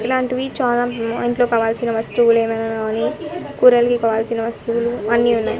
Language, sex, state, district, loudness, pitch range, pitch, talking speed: Telugu, female, Andhra Pradesh, Annamaya, -18 LUFS, 225-240 Hz, 235 Hz, 140 wpm